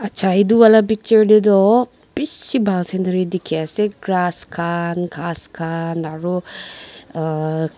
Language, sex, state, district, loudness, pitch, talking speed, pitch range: Nagamese, female, Nagaland, Dimapur, -17 LUFS, 185 Hz, 125 wpm, 165-215 Hz